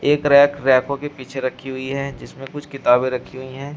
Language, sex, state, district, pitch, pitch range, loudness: Hindi, male, Uttar Pradesh, Shamli, 135 Hz, 130-140 Hz, -19 LUFS